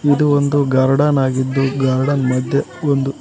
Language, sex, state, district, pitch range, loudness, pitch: Kannada, male, Karnataka, Koppal, 130-145 Hz, -16 LUFS, 135 Hz